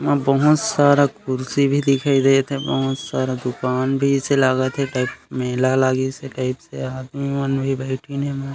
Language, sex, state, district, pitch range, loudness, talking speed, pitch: Chhattisgarhi, male, Chhattisgarh, Raigarh, 130-140 Hz, -20 LUFS, 170 wpm, 135 Hz